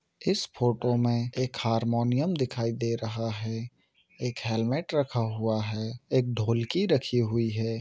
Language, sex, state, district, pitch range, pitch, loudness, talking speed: Hindi, male, Bihar, Gopalganj, 115-125 Hz, 115 Hz, -28 LUFS, 145 wpm